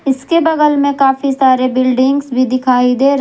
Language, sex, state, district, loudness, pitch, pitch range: Hindi, female, Jharkhand, Garhwa, -12 LUFS, 270 Hz, 255-280 Hz